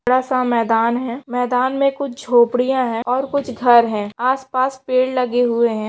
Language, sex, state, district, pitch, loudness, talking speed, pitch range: Hindi, female, Maharashtra, Solapur, 250 Hz, -18 LUFS, 185 wpm, 235-260 Hz